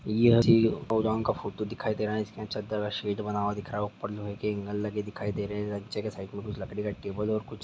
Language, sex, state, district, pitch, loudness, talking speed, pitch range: Hindi, male, Jharkhand, Sahebganj, 105 Hz, -30 LUFS, 305 wpm, 105-110 Hz